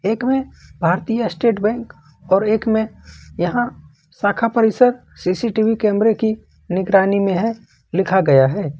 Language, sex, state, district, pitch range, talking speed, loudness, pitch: Hindi, male, Jharkhand, Ranchi, 190-230 Hz, 135 wpm, -18 LUFS, 215 Hz